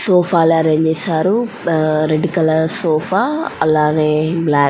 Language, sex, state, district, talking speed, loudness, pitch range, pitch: Telugu, female, Andhra Pradesh, Anantapur, 125 wpm, -15 LUFS, 155-180 Hz, 160 Hz